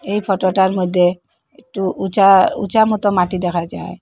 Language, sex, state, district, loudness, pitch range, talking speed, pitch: Bengali, female, Assam, Hailakandi, -16 LUFS, 180-200 Hz, 150 wpm, 190 Hz